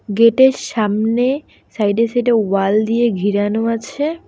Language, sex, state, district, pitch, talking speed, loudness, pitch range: Bengali, female, West Bengal, Alipurduar, 230 Hz, 110 wpm, -16 LUFS, 210-245 Hz